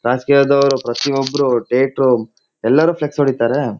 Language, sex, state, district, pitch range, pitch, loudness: Kannada, male, Karnataka, Shimoga, 125-140 Hz, 135 Hz, -15 LUFS